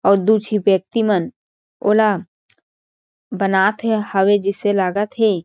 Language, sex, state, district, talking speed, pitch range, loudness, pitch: Chhattisgarhi, female, Chhattisgarh, Jashpur, 130 wpm, 190-210 Hz, -17 LUFS, 200 Hz